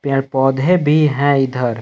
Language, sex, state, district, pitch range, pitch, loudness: Hindi, male, Jharkhand, Palamu, 135-150 Hz, 135 Hz, -15 LUFS